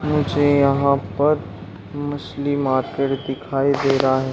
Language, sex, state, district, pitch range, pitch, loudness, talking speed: Hindi, male, Bihar, Saran, 130-145 Hz, 140 Hz, -20 LUFS, 125 wpm